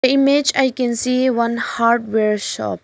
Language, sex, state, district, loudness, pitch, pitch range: English, female, Arunachal Pradesh, Lower Dibang Valley, -17 LUFS, 240 Hz, 220-260 Hz